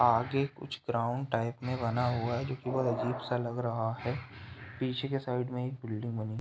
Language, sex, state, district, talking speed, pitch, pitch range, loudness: Hindi, male, Uttar Pradesh, Ghazipur, 225 wpm, 125 Hz, 115-130 Hz, -33 LUFS